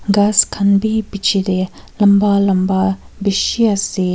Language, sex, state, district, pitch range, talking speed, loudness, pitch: Nagamese, female, Nagaland, Kohima, 190-205 Hz, 115 wpm, -15 LUFS, 200 Hz